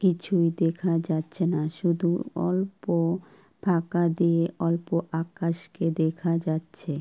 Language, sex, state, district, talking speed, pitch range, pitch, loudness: Bengali, female, West Bengal, Kolkata, 105 wpm, 165-180 Hz, 170 Hz, -26 LUFS